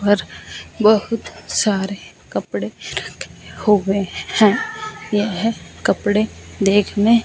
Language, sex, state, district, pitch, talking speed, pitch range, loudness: Hindi, female, Punjab, Fazilka, 210 Hz, 85 wpm, 200-225 Hz, -19 LUFS